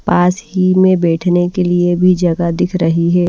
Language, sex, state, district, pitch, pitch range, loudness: Hindi, female, Maharashtra, Washim, 175 Hz, 175-185 Hz, -13 LUFS